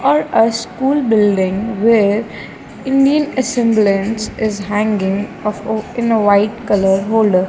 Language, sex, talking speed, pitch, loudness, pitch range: English, female, 120 wpm, 220 Hz, -15 LUFS, 205-235 Hz